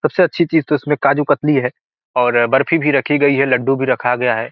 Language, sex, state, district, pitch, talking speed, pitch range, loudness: Hindi, male, Bihar, Gopalganj, 140 Hz, 250 wpm, 130-150 Hz, -15 LUFS